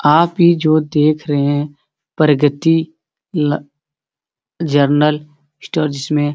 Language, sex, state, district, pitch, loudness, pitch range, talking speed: Hindi, male, Bihar, Supaul, 150 Hz, -15 LUFS, 145-155 Hz, 115 wpm